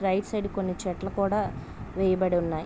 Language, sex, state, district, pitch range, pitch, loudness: Telugu, female, Andhra Pradesh, Visakhapatnam, 180-200 Hz, 190 Hz, -28 LUFS